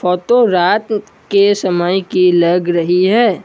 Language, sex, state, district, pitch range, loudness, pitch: Hindi, male, Assam, Kamrup Metropolitan, 180-205 Hz, -13 LUFS, 185 Hz